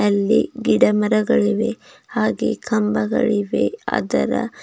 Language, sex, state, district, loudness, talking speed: Kannada, female, Karnataka, Bidar, -19 LUFS, 65 wpm